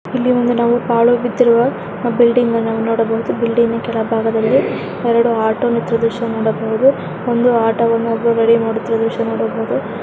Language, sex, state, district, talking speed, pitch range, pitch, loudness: Kannada, female, Karnataka, Dharwad, 135 wpm, 225-240 Hz, 230 Hz, -15 LUFS